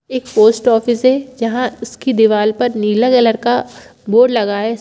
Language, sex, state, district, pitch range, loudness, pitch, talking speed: Hindi, female, Chhattisgarh, Bilaspur, 220-250 Hz, -14 LUFS, 230 Hz, 175 wpm